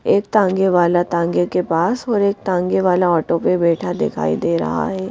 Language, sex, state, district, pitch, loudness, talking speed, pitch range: Hindi, female, Madhya Pradesh, Bhopal, 180 Hz, -17 LUFS, 200 wpm, 170-195 Hz